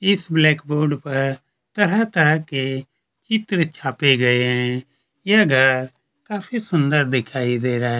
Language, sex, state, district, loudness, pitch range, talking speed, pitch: Hindi, male, Chhattisgarh, Kabirdham, -19 LUFS, 130-170 Hz, 150 wpm, 140 Hz